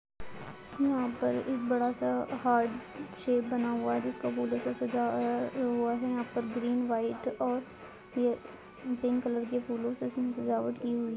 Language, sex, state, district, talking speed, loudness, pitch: Hindi, female, Goa, North and South Goa, 175 wpm, -32 LUFS, 235 Hz